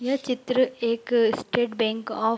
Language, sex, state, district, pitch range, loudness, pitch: Hindi, female, Bihar, East Champaran, 225-250 Hz, -24 LUFS, 235 Hz